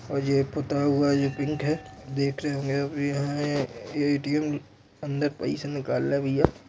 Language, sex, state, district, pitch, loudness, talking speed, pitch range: Hindi, male, Chhattisgarh, Korba, 140 Hz, -27 LUFS, 150 wpm, 140-145 Hz